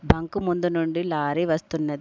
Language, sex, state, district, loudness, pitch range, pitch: Telugu, female, Telangana, Komaram Bheem, -25 LUFS, 155-175 Hz, 165 Hz